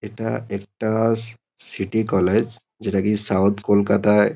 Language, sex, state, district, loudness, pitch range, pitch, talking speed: Bengali, male, West Bengal, Kolkata, -20 LUFS, 100-110 Hz, 105 Hz, 125 wpm